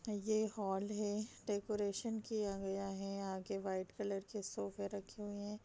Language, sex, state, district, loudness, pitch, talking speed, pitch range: Hindi, female, Bihar, Kishanganj, -42 LUFS, 205 Hz, 160 wpm, 195-210 Hz